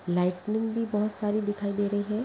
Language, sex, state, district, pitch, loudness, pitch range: Hindi, female, Bihar, Gaya, 210 Hz, -28 LUFS, 200-215 Hz